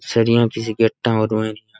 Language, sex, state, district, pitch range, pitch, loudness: Rajasthani, male, Rajasthan, Nagaur, 110-115 Hz, 115 Hz, -19 LUFS